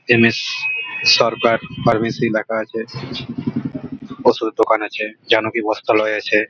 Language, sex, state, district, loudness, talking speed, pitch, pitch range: Bengali, male, West Bengal, Malda, -18 LUFS, 110 wpm, 115 Hz, 110-115 Hz